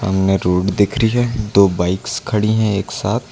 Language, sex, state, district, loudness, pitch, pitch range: Hindi, male, Uttar Pradesh, Lucknow, -17 LUFS, 100 Hz, 95-110 Hz